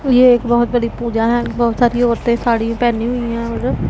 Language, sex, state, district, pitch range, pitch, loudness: Hindi, female, Punjab, Pathankot, 235-240 Hz, 235 Hz, -16 LUFS